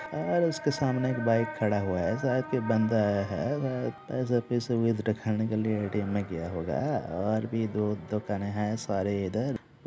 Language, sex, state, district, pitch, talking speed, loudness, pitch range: Hindi, male, Jharkhand, Sahebganj, 110 Hz, 190 wpm, -29 LUFS, 100-120 Hz